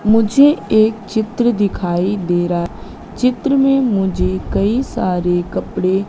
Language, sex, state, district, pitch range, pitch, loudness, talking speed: Hindi, female, Madhya Pradesh, Katni, 175-240 Hz, 205 Hz, -16 LUFS, 130 wpm